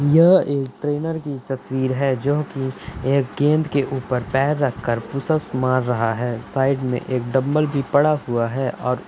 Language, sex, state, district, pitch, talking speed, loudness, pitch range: Hindi, male, Uttar Pradesh, Budaun, 135 Hz, 180 wpm, -21 LUFS, 125-145 Hz